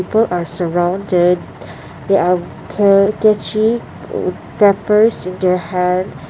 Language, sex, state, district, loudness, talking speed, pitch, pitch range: English, female, Nagaland, Dimapur, -15 LUFS, 105 wpm, 185 Hz, 175-205 Hz